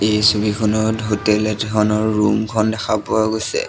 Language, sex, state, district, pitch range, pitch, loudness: Assamese, male, Assam, Sonitpur, 105-110 Hz, 110 Hz, -18 LUFS